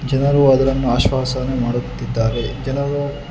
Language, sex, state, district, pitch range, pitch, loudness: Kannada, male, Karnataka, Bangalore, 120-140 Hz, 130 Hz, -18 LUFS